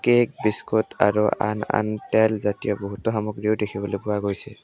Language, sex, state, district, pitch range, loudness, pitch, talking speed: Assamese, male, Assam, Kamrup Metropolitan, 105-110 Hz, -22 LUFS, 105 Hz, 155 wpm